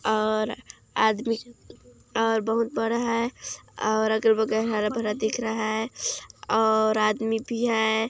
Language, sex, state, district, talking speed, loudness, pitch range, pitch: Hindi, female, Chhattisgarh, Kabirdham, 135 wpm, -25 LUFS, 220-225 Hz, 220 Hz